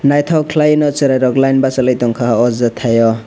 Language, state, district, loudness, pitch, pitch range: Kokborok, Tripura, West Tripura, -13 LUFS, 130 Hz, 120-145 Hz